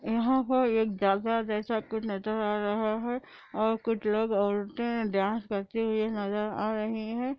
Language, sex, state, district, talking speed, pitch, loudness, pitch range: Hindi, female, Andhra Pradesh, Anantapur, 180 wpm, 220 Hz, -29 LUFS, 210-230 Hz